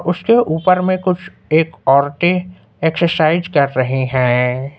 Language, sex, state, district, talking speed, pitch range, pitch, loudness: Hindi, male, Uttar Pradesh, Lucknow, 125 wpm, 135-180 Hz, 160 Hz, -15 LUFS